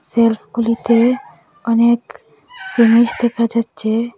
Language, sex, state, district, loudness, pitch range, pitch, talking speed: Bengali, female, Assam, Hailakandi, -15 LUFS, 230-235 Hz, 230 Hz, 70 wpm